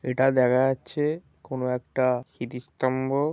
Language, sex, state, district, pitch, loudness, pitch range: Bengali, male, West Bengal, Kolkata, 130 Hz, -25 LUFS, 125-135 Hz